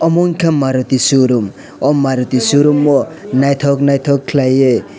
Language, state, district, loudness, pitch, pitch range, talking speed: Kokborok, Tripura, West Tripura, -13 LUFS, 135 Hz, 130-145 Hz, 130 wpm